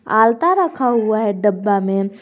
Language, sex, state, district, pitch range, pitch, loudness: Hindi, male, Jharkhand, Garhwa, 200-240 Hz, 215 Hz, -16 LUFS